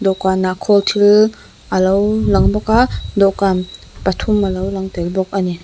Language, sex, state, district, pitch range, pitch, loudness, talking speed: Mizo, female, Mizoram, Aizawl, 185-205 Hz, 195 Hz, -15 LUFS, 150 wpm